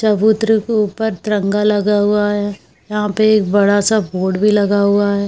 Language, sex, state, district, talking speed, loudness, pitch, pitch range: Hindi, female, Jharkhand, Jamtara, 170 wpm, -15 LUFS, 210 Hz, 205-215 Hz